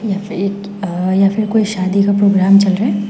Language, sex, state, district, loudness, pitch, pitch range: Hindi, female, Meghalaya, West Garo Hills, -14 LUFS, 200 Hz, 195-205 Hz